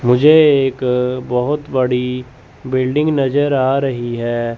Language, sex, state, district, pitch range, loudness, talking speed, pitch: Hindi, male, Chandigarh, Chandigarh, 125-140 Hz, -15 LUFS, 120 wpm, 130 Hz